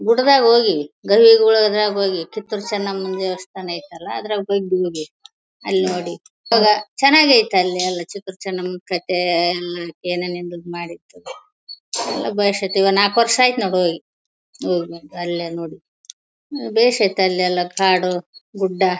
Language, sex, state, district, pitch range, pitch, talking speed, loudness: Kannada, female, Karnataka, Bellary, 180-215 Hz, 190 Hz, 125 wpm, -18 LUFS